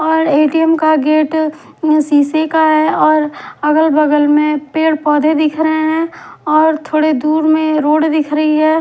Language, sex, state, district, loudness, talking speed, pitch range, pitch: Hindi, female, Punjab, Fazilka, -13 LUFS, 165 wpm, 300-315 Hz, 310 Hz